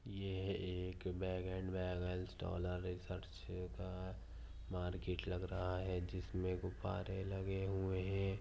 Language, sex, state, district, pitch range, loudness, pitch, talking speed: Hindi, female, Maharashtra, Pune, 90-95 Hz, -44 LUFS, 90 Hz, 115 wpm